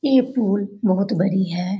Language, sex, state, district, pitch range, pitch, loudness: Hindi, female, Bihar, Jamui, 190-225 Hz, 200 Hz, -20 LUFS